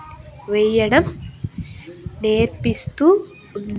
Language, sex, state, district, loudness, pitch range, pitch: Telugu, female, Andhra Pradesh, Annamaya, -18 LUFS, 210-310 Hz, 220 Hz